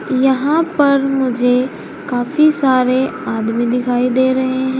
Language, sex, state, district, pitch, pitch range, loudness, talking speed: Hindi, female, Uttar Pradesh, Saharanpur, 260 Hz, 250-275 Hz, -15 LUFS, 125 wpm